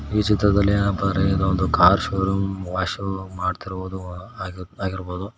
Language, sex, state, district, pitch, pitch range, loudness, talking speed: Kannada, male, Karnataka, Koppal, 95 Hz, 95-100 Hz, -22 LUFS, 135 wpm